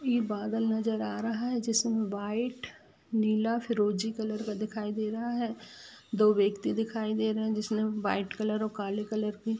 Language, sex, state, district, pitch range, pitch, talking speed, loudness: Hindi, female, Jharkhand, Jamtara, 215-225 Hz, 220 Hz, 185 wpm, -31 LUFS